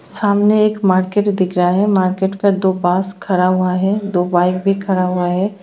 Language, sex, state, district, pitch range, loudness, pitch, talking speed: Hindi, female, Bihar, Bhagalpur, 185-200 Hz, -15 LUFS, 190 Hz, 200 wpm